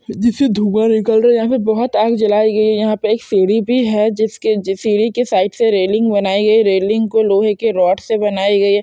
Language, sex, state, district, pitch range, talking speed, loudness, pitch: Hindi, female, Chhattisgarh, Bilaspur, 205-225 Hz, 230 wpm, -14 LUFS, 215 Hz